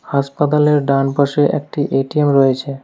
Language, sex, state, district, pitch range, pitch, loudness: Bengali, male, West Bengal, Alipurduar, 135-145 Hz, 140 Hz, -15 LUFS